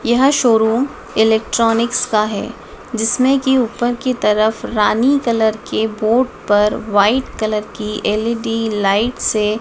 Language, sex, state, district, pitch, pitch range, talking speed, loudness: Hindi, female, Madhya Pradesh, Dhar, 225 Hz, 215-245 Hz, 130 wpm, -16 LUFS